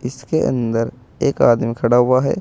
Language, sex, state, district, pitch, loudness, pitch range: Hindi, male, Uttar Pradesh, Saharanpur, 120 Hz, -17 LUFS, 115-130 Hz